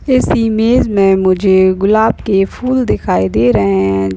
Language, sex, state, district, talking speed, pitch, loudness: Hindi, female, Bihar, Purnia, 160 wpm, 195 Hz, -12 LUFS